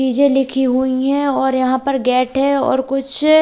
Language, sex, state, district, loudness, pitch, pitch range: Hindi, female, Bihar, Katihar, -15 LUFS, 270 Hz, 260-275 Hz